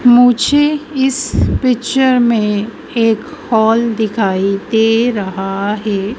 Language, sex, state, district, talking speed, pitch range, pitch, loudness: Hindi, female, Madhya Pradesh, Dhar, 95 wpm, 210-250 Hz, 230 Hz, -14 LUFS